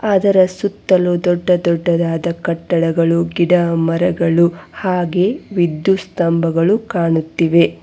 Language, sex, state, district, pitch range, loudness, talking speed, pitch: Kannada, female, Karnataka, Bangalore, 170-185 Hz, -16 LUFS, 85 wpm, 170 Hz